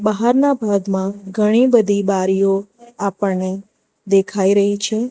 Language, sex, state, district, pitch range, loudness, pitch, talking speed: Gujarati, female, Gujarat, Valsad, 195-220 Hz, -17 LUFS, 200 Hz, 105 wpm